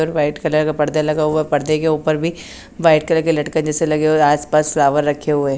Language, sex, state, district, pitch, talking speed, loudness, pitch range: Hindi, female, Haryana, Charkhi Dadri, 155 Hz, 225 wpm, -17 LUFS, 150-160 Hz